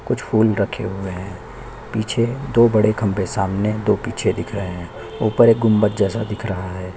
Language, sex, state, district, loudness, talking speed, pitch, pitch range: Hindi, male, Chhattisgarh, Sukma, -19 LUFS, 190 wpm, 105 Hz, 95-110 Hz